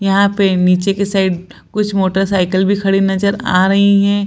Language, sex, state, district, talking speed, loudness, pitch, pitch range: Hindi, female, Bihar, Lakhisarai, 195 wpm, -14 LUFS, 195 Hz, 190-200 Hz